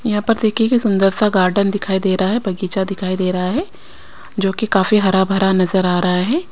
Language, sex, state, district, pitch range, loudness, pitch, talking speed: Hindi, female, Himachal Pradesh, Shimla, 190-215 Hz, -16 LUFS, 195 Hz, 230 wpm